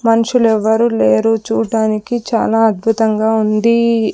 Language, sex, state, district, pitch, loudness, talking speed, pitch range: Telugu, female, Andhra Pradesh, Sri Satya Sai, 225 Hz, -14 LUFS, 100 wpm, 220-230 Hz